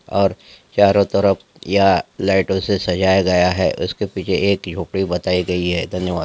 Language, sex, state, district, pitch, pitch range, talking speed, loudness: Angika, male, Bihar, Samastipur, 95 Hz, 90-100 Hz, 165 wpm, -18 LUFS